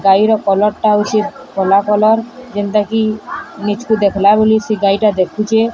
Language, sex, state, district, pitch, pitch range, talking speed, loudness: Odia, female, Odisha, Sambalpur, 215 Hz, 205-220 Hz, 125 wpm, -14 LUFS